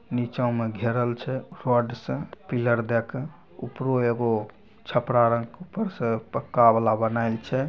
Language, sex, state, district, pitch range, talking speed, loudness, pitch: Angika, male, Bihar, Begusarai, 115-130 Hz, 155 wpm, -25 LUFS, 120 Hz